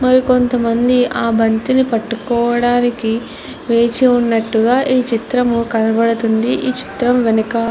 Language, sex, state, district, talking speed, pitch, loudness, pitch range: Telugu, female, Andhra Pradesh, Chittoor, 115 wpm, 235 Hz, -15 LUFS, 230-250 Hz